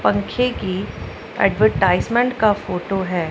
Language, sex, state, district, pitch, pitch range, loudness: Hindi, female, Punjab, Pathankot, 190 Hz, 175-215 Hz, -19 LUFS